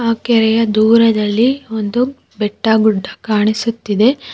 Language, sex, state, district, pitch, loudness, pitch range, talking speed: Kannada, female, Karnataka, Bangalore, 220 Hz, -14 LUFS, 215-230 Hz, 85 wpm